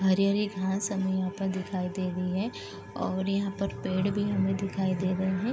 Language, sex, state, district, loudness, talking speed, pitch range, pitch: Hindi, female, Uttar Pradesh, Deoria, -29 LUFS, 205 wpm, 185-195 Hz, 190 Hz